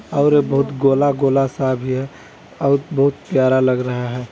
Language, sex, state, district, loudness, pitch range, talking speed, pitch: Hindi, male, Chhattisgarh, Balrampur, -17 LUFS, 130-140 Hz, 165 wpm, 135 Hz